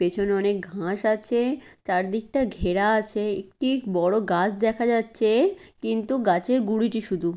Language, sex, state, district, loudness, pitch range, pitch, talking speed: Bengali, female, West Bengal, Kolkata, -24 LUFS, 195-235 Hz, 215 Hz, 130 wpm